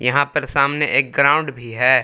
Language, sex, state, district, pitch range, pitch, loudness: Hindi, male, Jharkhand, Palamu, 130-145 Hz, 140 Hz, -17 LUFS